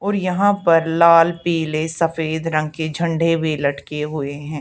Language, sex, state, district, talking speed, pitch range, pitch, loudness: Hindi, female, Haryana, Charkhi Dadri, 170 wpm, 155-170 Hz, 160 Hz, -18 LUFS